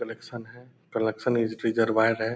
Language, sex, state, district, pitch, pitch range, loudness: Hindi, male, Bihar, Purnia, 115 Hz, 110-120 Hz, -26 LUFS